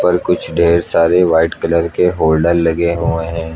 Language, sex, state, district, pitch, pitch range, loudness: Hindi, male, Uttar Pradesh, Lucknow, 85 Hz, 80-85 Hz, -14 LUFS